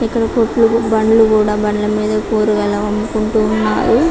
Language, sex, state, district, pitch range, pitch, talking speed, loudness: Telugu, female, Telangana, Karimnagar, 210-225 Hz, 215 Hz, 130 wpm, -14 LUFS